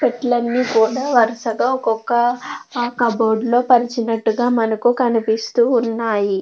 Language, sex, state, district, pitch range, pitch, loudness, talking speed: Telugu, female, Andhra Pradesh, Anantapur, 225-245 Hz, 235 Hz, -17 LUFS, 95 wpm